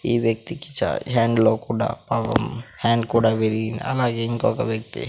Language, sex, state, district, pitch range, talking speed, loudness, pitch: Telugu, male, Andhra Pradesh, Sri Satya Sai, 115-120 Hz, 165 wpm, -22 LUFS, 115 Hz